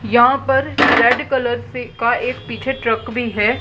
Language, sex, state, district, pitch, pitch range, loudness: Hindi, female, Haryana, Charkhi Dadri, 245 Hz, 240-265 Hz, -17 LUFS